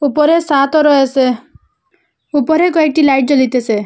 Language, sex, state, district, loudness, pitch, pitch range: Bengali, female, Assam, Hailakandi, -12 LUFS, 285 Hz, 265-305 Hz